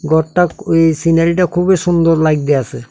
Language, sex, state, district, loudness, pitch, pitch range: Bengali, male, Tripura, South Tripura, -13 LUFS, 165 Hz, 155-175 Hz